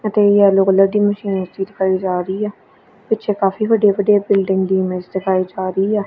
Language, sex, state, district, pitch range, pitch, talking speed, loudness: Punjabi, female, Punjab, Kapurthala, 190-205 Hz, 195 Hz, 210 wpm, -16 LUFS